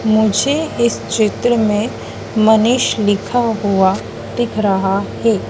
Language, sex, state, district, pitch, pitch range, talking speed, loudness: Hindi, female, Madhya Pradesh, Dhar, 220 Hz, 205-235 Hz, 110 wpm, -16 LUFS